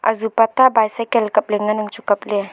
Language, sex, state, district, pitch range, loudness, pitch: Wancho, female, Arunachal Pradesh, Longding, 210-225 Hz, -17 LUFS, 215 Hz